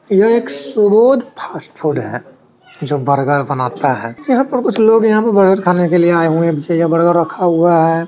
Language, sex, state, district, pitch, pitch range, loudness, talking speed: Hindi, male, Bihar, Sitamarhi, 175 Hz, 160-220 Hz, -13 LUFS, 210 wpm